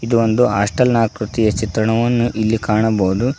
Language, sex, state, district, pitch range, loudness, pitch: Kannada, male, Karnataka, Koppal, 110-120 Hz, -16 LUFS, 110 Hz